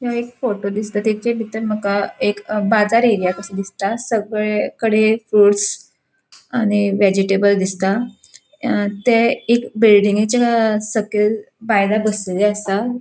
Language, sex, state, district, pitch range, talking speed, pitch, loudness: Konkani, female, Goa, North and South Goa, 205-230 Hz, 105 wpm, 210 Hz, -17 LUFS